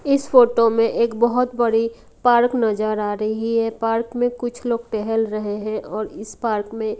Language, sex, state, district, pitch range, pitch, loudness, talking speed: Hindi, female, Haryana, Rohtak, 215-240 Hz, 230 Hz, -20 LUFS, 190 wpm